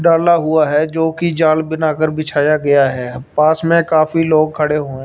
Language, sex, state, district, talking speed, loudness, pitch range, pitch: Hindi, male, Punjab, Fazilka, 180 wpm, -14 LUFS, 150-160 Hz, 155 Hz